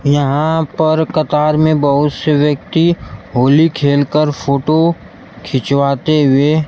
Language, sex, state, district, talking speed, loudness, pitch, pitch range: Hindi, male, Bihar, Kaimur, 115 wpm, -13 LUFS, 150 Hz, 140-155 Hz